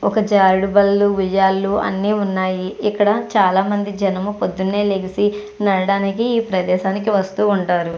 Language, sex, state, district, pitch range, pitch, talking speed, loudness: Telugu, female, Andhra Pradesh, Chittoor, 190-205 Hz, 200 Hz, 120 wpm, -17 LUFS